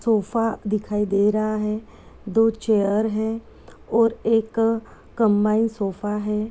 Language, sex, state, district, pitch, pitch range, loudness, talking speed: Hindi, female, Uttar Pradesh, Muzaffarnagar, 215 Hz, 210-225 Hz, -22 LUFS, 120 wpm